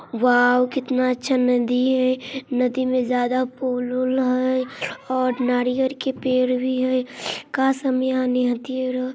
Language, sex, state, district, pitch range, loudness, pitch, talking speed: Maithili, male, Bihar, Samastipur, 250-260 Hz, -21 LUFS, 255 Hz, 145 wpm